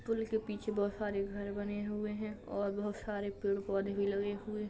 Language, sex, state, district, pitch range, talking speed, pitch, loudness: Hindi, female, Uttar Pradesh, Jalaun, 200-210 Hz, 230 wpm, 205 Hz, -37 LUFS